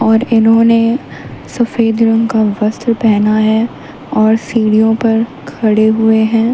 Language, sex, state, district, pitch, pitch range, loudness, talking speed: Hindi, female, Haryana, Rohtak, 225 Hz, 220-230 Hz, -12 LUFS, 130 wpm